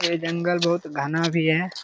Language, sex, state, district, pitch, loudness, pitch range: Hindi, male, Jharkhand, Jamtara, 170 Hz, -23 LUFS, 160-175 Hz